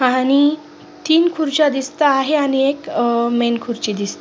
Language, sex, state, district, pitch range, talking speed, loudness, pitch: Marathi, female, Maharashtra, Sindhudurg, 240-305 Hz, 130 wpm, -17 LUFS, 280 Hz